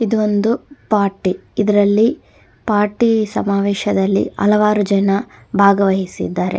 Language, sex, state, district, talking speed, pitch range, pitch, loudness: Kannada, female, Karnataka, Dakshina Kannada, 75 wpm, 200-215 Hz, 205 Hz, -16 LUFS